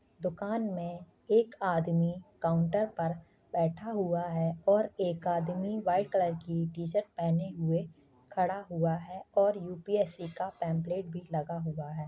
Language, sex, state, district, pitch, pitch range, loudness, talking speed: Hindi, female, Chhattisgarh, Jashpur, 175 Hz, 165-195 Hz, -32 LUFS, 145 wpm